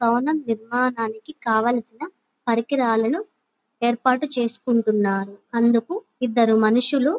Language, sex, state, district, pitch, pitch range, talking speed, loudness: Telugu, female, Andhra Pradesh, Guntur, 235 Hz, 225-270 Hz, 75 wpm, -22 LUFS